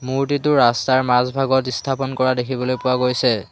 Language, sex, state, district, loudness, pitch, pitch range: Assamese, male, Assam, Hailakandi, -18 LUFS, 130 Hz, 125-135 Hz